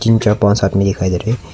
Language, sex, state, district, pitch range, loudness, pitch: Hindi, male, Arunachal Pradesh, Longding, 95-115 Hz, -15 LUFS, 100 Hz